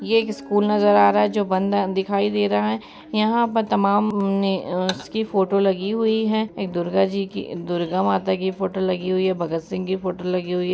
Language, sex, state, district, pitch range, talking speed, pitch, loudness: Hindi, female, Bihar, Gopalganj, 180-205 Hz, 240 wpm, 190 Hz, -21 LUFS